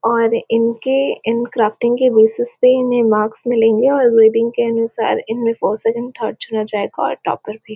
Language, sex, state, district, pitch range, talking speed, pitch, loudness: Hindi, female, Chhattisgarh, Korba, 220-240 Hz, 170 wpm, 230 Hz, -16 LUFS